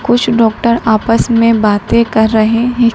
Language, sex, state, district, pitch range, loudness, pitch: Hindi, male, Madhya Pradesh, Dhar, 220-235 Hz, -11 LUFS, 230 Hz